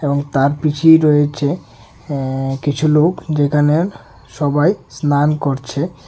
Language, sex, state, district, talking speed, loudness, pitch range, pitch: Bengali, male, Tripura, West Tripura, 110 wpm, -16 LUFS, 135-150 Hz, 145 Hz